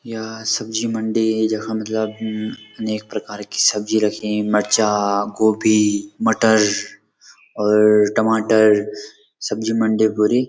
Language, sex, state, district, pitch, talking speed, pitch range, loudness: Garhwali, male, Uttarakhand, Uttarkashi, 110 Hz, 105 wpm, 105-110 Hz, -18 LUFS